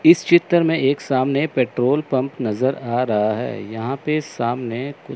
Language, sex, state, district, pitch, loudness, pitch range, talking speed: Hindi, male, Chandigarh, Chandigarh, 130 Hz, -20 LUFS, 120-145 Hz, 165 wpm